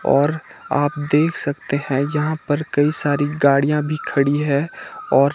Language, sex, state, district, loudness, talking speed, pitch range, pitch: Hindi, male, Himachal Pradesh, Shimla, -19 LUFS, 155 wpm, 140-150 Hz, 145 Hz